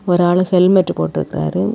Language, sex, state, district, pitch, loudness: Tamil, female, Tamil Nadu, Kanyakumari, 175 Hz, -15 LUFS